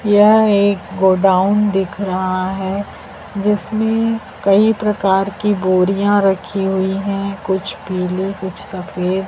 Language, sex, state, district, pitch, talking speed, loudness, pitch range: Hindi, male, Madhya Pradesh, Dhar, 195 Hz, 115 wpm, -16 LUFS, 190-205 Hz